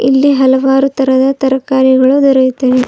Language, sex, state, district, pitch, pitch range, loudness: Kannada, female, Karnataka, Bidar, 265 Hz, 260-270 Hz, -10 LUFS